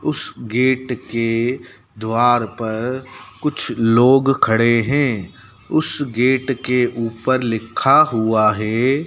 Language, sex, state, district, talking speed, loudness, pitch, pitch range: Hindi, male, Madhya Pradesh, Dhar, 105 wpm, -18 LUFS, 120 Hz, 115-130 Hz